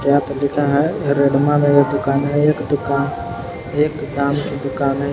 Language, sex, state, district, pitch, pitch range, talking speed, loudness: Hindi, male, Jharkhand, Palamu, 140 Hz, 140-145 Hz, 185 wpm, -18 LUFS